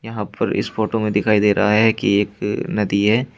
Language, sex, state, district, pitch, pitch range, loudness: Hindi, male, Uttar Pradesh, Shamli, 105 Hz, 105-110 Hz, -18 LUFS